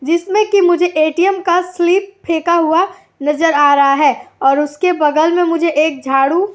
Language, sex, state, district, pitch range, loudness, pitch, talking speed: Hindi, female, Uttar Pradesh, Jyotiba Phule Nagar, 300-365 Hz, -14 LUFS, 340 Hz, 185 wpm